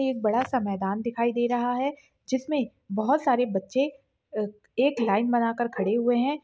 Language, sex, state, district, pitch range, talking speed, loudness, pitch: Hindi, female, Bihar, Saharsa, 215-265 Hz, 170 wpm, -26 LUFS, 245 Hz